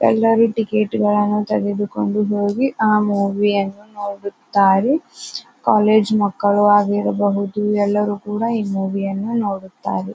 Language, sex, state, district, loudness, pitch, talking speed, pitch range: Kannada, female, Karnataka, Bijapur, -18 LUFS, 205 Hz, 110 wpm, 200-215 Hz